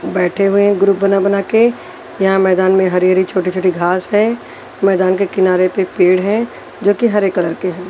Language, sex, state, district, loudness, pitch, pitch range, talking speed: Hindi, female, Haryana, Rohtak, -14 LUFS, 195 Hz, 185-205 Hz, 195 wpm